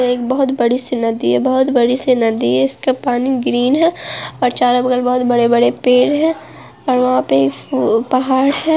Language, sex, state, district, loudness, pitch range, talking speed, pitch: Hindi, female, Bihar, Araria, -15 LUFS, 235-260 Hz, 180 wpm, 250 Hz